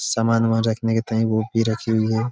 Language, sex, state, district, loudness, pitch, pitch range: Hindi, male, Uttar Pradesh, Budaun, -21 LUFS, 115 Hz, 110-115 Hz